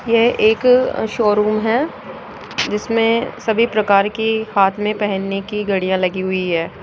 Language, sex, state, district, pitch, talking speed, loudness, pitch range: Hindi, female, Rajasthan, Jaipur, 210 Hz, 140 wpm, -17 LUFS, 195-225 Hz